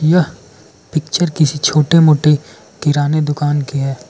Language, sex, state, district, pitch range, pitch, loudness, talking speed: Hindi, male, Arunachal Pradesh, Lower Dibang Valley, 145-155 Hz, 150 Hz, -15 LUFS, 130 wpm